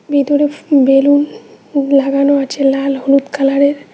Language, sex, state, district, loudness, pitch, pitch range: Bengali, female, West Bengal, Cooch Behar, -13 LUFS, 280 Hz, 275-285 Hz